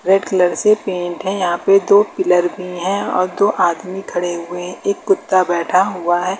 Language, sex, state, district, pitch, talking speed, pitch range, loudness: Hindi, female, Uttar Pradesh, Lucknow, 185 Hz, 195 wpm, 175-195 Hz, -17 LUFS